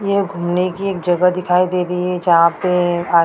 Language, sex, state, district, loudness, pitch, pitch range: Hindi, female, Maharashtra, Mumbai Suburban, -16 LUFS, 180 Hz, 175-180 Hz